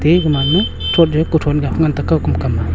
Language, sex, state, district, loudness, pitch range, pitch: Wancho, male, Arunachal Pradesh, Longding, -15 LUFS, 150-165 Hz, 155 Hz